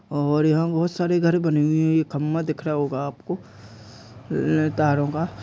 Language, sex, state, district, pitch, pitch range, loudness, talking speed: Hindi, female, Uttar Pradesh, Jalaun, 150 Hz, 140-160 Hz, -22 LUFS, 190 wpm